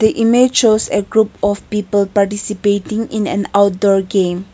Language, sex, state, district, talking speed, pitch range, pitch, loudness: English, female, Nagaland, Kohima, 145 wpm, 200-220 Hz, 205 Hz, -15 LUFS